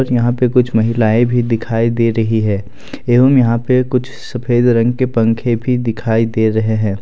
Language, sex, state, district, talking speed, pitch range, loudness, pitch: Hindi, male, Jharkhand, Deoghar, 195 wpm, 110-125 Hz, -14 LUFS, 115 Hz